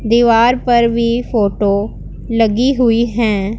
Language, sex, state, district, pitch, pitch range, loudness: Hindi, male, Punjab, Pathankot, 230 Hz, 220-235 Hz, -14 LUFS